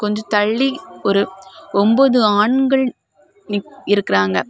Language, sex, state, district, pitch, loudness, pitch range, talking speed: Tamil, female, Tamil Nadu, Kanyakumari, 210 Hz, -17 LUFS, 200-250 Hz, 80 wpm